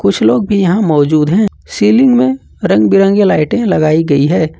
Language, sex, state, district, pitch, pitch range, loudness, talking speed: Hindi, male, Jharkhand, Ranchi, 195 Hz, 155-215 Hz, -11 LUFS, 180 wpm